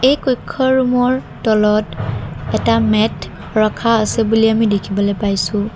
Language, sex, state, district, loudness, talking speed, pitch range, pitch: Assamese, female, Assam, Kamrup Metropolitan, -16 LUFS, 135 wpm, 200-230 Hz, 215 Hz